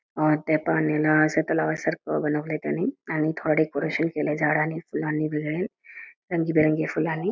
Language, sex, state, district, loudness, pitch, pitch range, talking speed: Marathi, female, Karnataka, Belgaum, -25 LUFS, 155 Hz, 155-160 Hz, 130 wpm